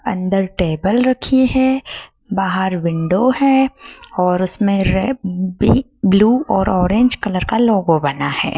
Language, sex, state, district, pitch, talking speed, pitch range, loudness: Hindi, female, Madhya Pradesh, Dhar, 195 Hz, 125 wpm, 185-255 Hz, -16 LUFS